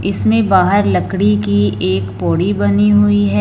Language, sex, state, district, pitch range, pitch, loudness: Hindi, female, Punjab, Fazilka, 95-105 Hz, 100 Hz, -14 LUFS